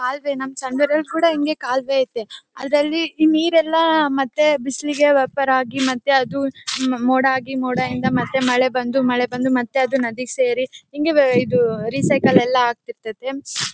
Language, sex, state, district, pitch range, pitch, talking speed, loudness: Kannada, female, Karnataka, Bellary, 255-295 Hz, 265 Hz, 150 wpm, -19 LUFS